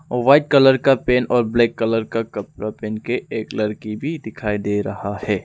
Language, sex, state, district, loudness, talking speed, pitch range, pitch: Hindi, male, Arunachal Pradesh, Lower Dibang Valley, -19 LUFS, 200 wpm, 105-125 Hz, 115 Hz